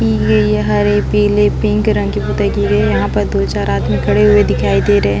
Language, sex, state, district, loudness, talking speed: Hindi, female, Chhattisgarh, Sukma, -13 LUFS, 255 wpm